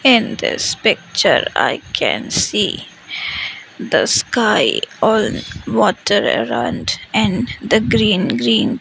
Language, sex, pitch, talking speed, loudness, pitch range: English, female, 235 Hz, 110 wpm, -16 LUFS, 220-250 Hz